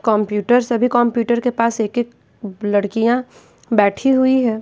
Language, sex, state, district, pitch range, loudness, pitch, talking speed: Hindi, female, Bihar, West Champaran, 210-245 Hz, -17 LUFS, 235 Hz, 145 wpm